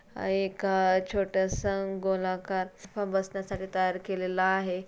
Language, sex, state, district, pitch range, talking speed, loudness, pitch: Marathi, female, Maharashtra, Pune, 185-195 Hz, 100 wpm, -29 LUFS, 190 Hz